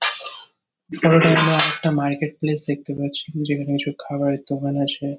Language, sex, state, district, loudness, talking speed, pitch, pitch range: Bengali, male, West Bengal, Kolkata, -18 LUFS, 125 wpm, 145 Hz, 140-155 Hz